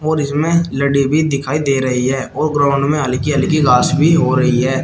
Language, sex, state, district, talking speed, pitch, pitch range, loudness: Hindi, male, Uttar Pradesh, Shamli, 225 wpm, 140 Hz, 135-155 Hz, -15 LUFS